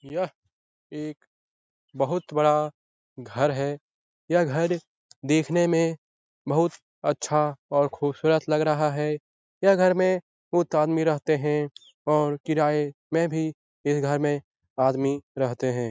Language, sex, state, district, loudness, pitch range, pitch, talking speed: Hindi, male, Bihar, Lakhisarai, -25 LUFS, 140-160 Hz, 150 Hz, 130 wpm